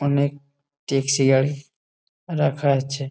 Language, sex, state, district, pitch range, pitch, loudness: Bengali, male, West Bengal, Malda, 135-145 Hz, 140 Hz, -21 LUFS